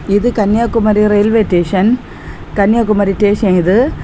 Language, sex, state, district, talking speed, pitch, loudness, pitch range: Tamil, female, Tamil Nadu, Kanyakumari, 105 wpm, 210 Hz, -12 LUFS, 200-225 Hz